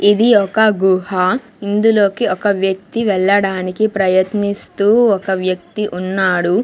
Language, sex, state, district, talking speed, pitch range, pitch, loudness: Telugu, female, Andhra Pradesh, Sri Satya Sai, 100 wpm, 185-210 Hz, 200 Hz, -15 LUFS